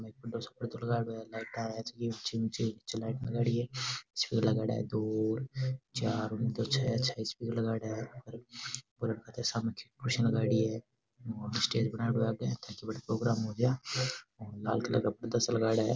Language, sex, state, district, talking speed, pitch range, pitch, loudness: Rajasthani, male, Rajasthan, Nagaur, 60 wpm, 110-120 Hz, 115 Hz, -34 LUFS